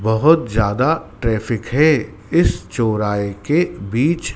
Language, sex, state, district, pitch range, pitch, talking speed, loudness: Hindi, male, Madhya Pradesh, Dhar, 105-150 Hz, 115 Hz, 110 wpm, -18 LUFS